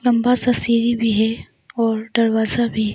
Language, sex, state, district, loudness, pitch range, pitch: Hindi, female, Arunachal Pradesh, Longding, -18 LUFS, 220-240 Hz, 230 Hz